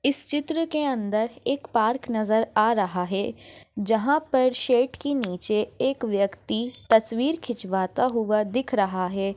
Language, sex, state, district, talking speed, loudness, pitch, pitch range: Hindi, female, Maharashtra, Sindhudurg, 145 wpm, -24 LUFS, 230 Hz, 210-265 Hz